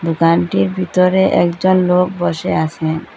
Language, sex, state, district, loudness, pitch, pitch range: Bengali, female, Assam, Hailakandi, -15 LUFS, 175 Hz, 160-180 Hz